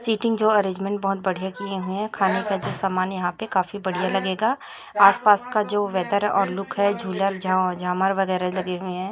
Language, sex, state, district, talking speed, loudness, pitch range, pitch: Hindi, female, Chhattisgarh, Raipur, 195 wpm, -23 LUFS, 185-205 Hz, 195 Hz